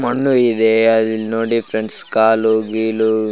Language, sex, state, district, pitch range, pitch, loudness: Kannada, male, Karnataka, Raichur, 110-115 Hz, 110 Hz, -16 LUFS